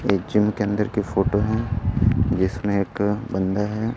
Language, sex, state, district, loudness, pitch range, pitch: Hindi, male, Chhattisgarh, Raipur, -22 LUFS, 100-110 Hz, 105 Hz